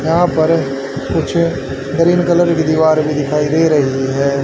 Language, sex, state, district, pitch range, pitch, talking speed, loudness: Hindi, male, Haryana, Charkhi Dadri, 135-165 Hz, 155 Hz, 160 wpm, -14 LUFS